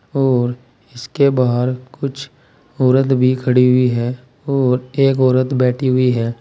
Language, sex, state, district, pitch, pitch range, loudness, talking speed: Hindi, male, Uttar Pradesh, Saharanpur, 130 Hz, 125-135 Hz, -16 LUFS, 140 wpm